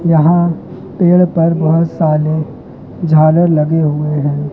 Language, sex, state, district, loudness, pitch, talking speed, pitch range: Hindi, male, Madhya Pradesh, Katni, -12 LUFS, 160 Hz, 120 wpm, 155-170 Hz